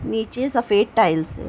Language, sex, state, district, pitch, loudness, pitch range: Hindi, female, Uttar Pradesh, Varanasi, 225 Hz, -20 LUFS, 205-235 Hz